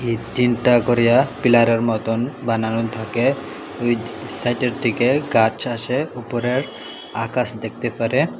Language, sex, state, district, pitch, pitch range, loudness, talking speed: Bengali, male, Tripura, Unakoti, 120 Hz, 115-125 Hz, -20 LUFS, 115 wpm